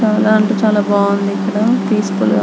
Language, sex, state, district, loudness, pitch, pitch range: Telugu, female, Andhra Pradesh, Anantapur, -14 LUFS, 210 Hz, 200-215 Hz